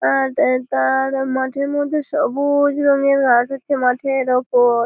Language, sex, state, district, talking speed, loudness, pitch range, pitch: Bengali, female, West Bengal, Malda, 135 wpm, -17 LUFS, 250-280 Hz, 265 Hz